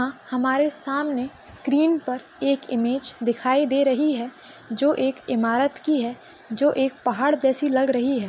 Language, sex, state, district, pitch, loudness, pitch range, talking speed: Hindi, female, Maharashtra, Solapur, 265 Hz, -23 LUFS, 250-280 Hz, 160 wpm